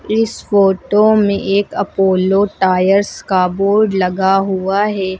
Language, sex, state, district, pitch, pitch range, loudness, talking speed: Hindi, female, Uttar Pradesh, Lucknow, 195 Hz, 190-205 Hz, -14 LUFS, 125 wpm